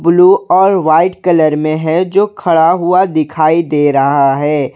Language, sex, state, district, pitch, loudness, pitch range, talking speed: Hindi, male, Jharkhand, Garhwa, 160 Hz, -11 LUFS, 150-180 Hz, 165 wpm